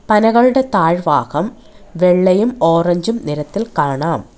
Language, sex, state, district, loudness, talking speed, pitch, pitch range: Malayalam, female, Kerala, Kollam, -15 LUFS, 80 wpm, 200 Hz, 165-225 Hz